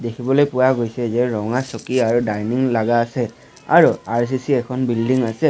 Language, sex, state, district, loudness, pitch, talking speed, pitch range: Assamese, male, Assam, Sonitpur, -19 LUFS, 120 Hz, 165 wpm, 115-130 Hz